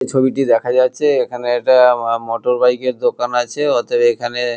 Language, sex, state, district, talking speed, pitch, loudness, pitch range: Bengali, male, West Bengal, Kolkata, 185 wpm, 125 Hz, -15 LUFS, 120-140 Hz